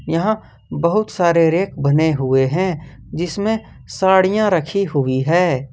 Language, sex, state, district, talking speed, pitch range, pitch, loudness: Hindi, male, Jharkhand, Ranchi, 125 wpm, 140-190 Hz, 170 Hz, -17 LUFS